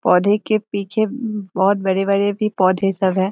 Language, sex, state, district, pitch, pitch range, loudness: Hindi, female, Bihar, Vaishali, 200 Hz, 190-210 Hz, -18 LUFS